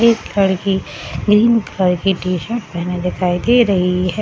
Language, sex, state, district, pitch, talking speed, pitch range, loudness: Hindi, female, Bihar, Samastipur, 190 Hz, 170 wpm, 180-215 Hz, -16 LUFS